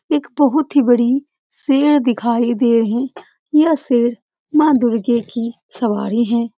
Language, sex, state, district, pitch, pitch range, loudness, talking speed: Hindi, female, Bihar, Saran, 245 Hz, 235-285 Hz, -16 LUFS, 135 wpm